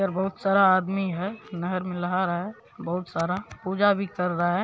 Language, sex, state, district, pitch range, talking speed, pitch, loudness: Maithili, male, Bihar, Supaul, 180-195 Hz, 230 wpm, 185 Hz, -26 LUFS